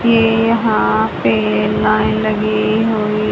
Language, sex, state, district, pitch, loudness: Hindi, male, Haryana, Rohtak, 215 Hz, -15 LUFS